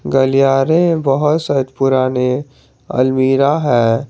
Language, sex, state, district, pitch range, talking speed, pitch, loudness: Hindi, male, Jharkhand, Garhwa, 130-145 Hz, 100 wpm, 135 Hz, -14 LUFS